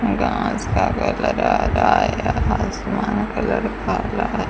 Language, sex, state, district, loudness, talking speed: Hindi, female, Rajasthan, Bikaner, -20 LUFS, 65 wpm